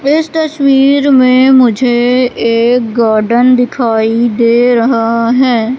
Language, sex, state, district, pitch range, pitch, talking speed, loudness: Hindi, female, Madhya Pradesh, Katni, 230-260 Hz, 245 Hz, 105 wpm, -9 LUFS